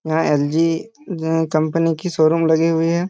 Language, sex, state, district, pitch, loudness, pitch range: Hindi, male, Jharkhand, Jamtara, 165 Hz, -18 LUFS, 160-165 Hz